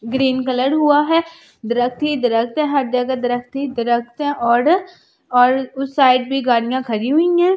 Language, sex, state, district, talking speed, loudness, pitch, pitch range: Hindi, female, Delhi, New Delhi, 180 wpm, -17 LUFS, 260 Hz, 245-295 Hz